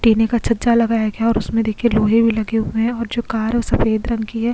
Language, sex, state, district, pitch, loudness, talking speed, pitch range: Hindi, female, Goa, North and South Goa, 225 Hz, -18 LUFS, 290 wpm, 220-235 Hz